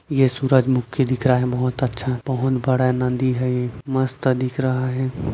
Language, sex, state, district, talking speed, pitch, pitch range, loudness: Hindi, male, Chhattisgarh, Korba, 180 wpm, 130 Hz, 125-130 Hz, -21 LUFS